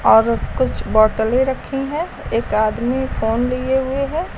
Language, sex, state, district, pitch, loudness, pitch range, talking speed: Hindi, female, Uttar Pradesh, Lucknow, 255 Hz, -18 LUFS, 225-265 Hz, 150 wpm